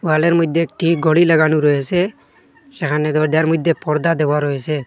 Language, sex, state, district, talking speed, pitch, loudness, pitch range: Bengali, male, Assam, Hailakandi, 170 wpm, 160 Hz, -16 LUFS, 150-170 Hz